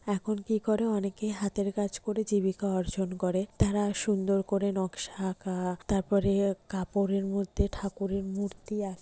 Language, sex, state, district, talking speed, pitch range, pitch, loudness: Bengali, female, West Bengal, North 24 Parganas, 140 wpm, 190-205 Hz, 200 Hz, -30 LUFS